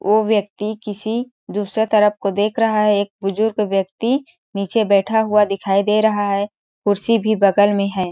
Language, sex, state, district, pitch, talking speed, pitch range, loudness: Hindi, female, Chhattisgarh, Balrampur, 210 Hz, 175 wpm, 200-220 Hz, -18 LUFS